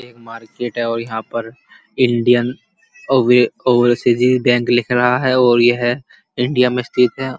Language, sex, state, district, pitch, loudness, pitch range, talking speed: Hindi, male, Uttar Pradesh, Muzaffarnagar, 125 Hz, -16 LUFS, 120-125 Hz, 155 wpm